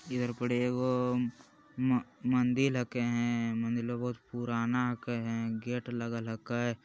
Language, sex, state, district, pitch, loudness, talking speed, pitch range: Magahi, male, Bihar, Jamui, 120 Hz, -33 LUFS, 140 wpm, 120-125 Hz